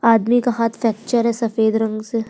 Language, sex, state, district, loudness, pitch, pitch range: Hindi, female, Uttar Pradesh, Budaun, -19 LUFS, 230 Hz, 220-235 Hz